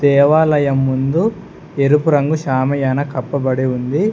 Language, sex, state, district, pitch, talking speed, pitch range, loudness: Telugu, male, Telangana, Hyderabad, 140 Hz, 100 wpm, 130-150 Hz, -16 LUFS